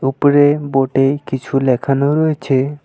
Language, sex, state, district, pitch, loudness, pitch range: Bengali, male, West Bengal, Alipurduar, 135 Hz, -15 LUFS, 135-145 Hz